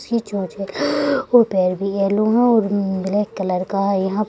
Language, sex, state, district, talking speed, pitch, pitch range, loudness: Hindi, female, Bihar, Gaya, 195 wpm, 200 Hz, 195-225 Hz, -19 LUFS